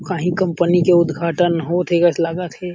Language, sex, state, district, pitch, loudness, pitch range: Chhattisgarhi, male, Chhattisgarh, Sarguja, 175 Hz, -17 LUFS, 170-180 Hz